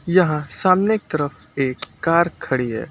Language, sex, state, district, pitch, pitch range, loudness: Hindi, male, Uttar Pradesh, Lucknow, 155 Hz, 140-180 Hz, -20 LUFS